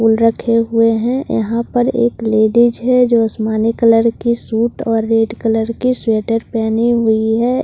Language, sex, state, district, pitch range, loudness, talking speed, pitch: Hindi, female, Bihar, Katihar, 225-235 Hz, -15 LUFS, 180 wpm, 230 Hz